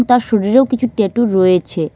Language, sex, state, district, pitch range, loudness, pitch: Bengali, female, West Bengal, Cooch Behar, 190-245 Hz, -14 LUFS, 220 Hz